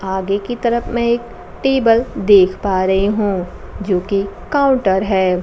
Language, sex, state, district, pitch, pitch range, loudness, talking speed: Hindi, female, Bihar, Kaimur, 200 Hz, 190-235 Hz, -16 LUFS, 155 wpm